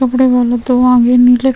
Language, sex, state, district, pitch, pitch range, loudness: Hindi, female, Chhattisgarh, Sukma, 250 Hz, 245-260 Hz, -10 LUFS